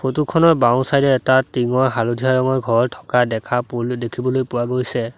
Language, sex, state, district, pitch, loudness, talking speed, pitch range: Assamese, male, Assam, Sonitpur, 125 Hz, -18 LUFS, 185 wpm, 120-130 Hz